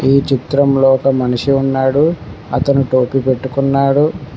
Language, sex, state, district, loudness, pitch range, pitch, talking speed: Telugu, male, Telangana, Mahabubabad, -14 LUFS, 130-140 Hz, 135 Hz, 110 wpm